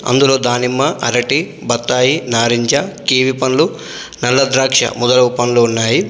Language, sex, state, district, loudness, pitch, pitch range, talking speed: Telugu, male, Telangana, Adilabad, -14 LUFS, 125 Hz, 120-135 Hz, 120 wpm